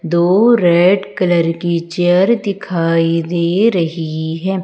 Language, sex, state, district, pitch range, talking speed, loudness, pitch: Hindi, female, Madhya Pradesh, Umaria, 165-190 Hz, 115 wpm, -14 LUFS, 175 Hz